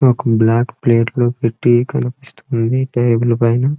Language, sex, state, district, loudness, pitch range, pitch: Telugu, male, Andhra Pradesh, Srikakulam, -15 LUFS, 115-130 Hz, 120 Hz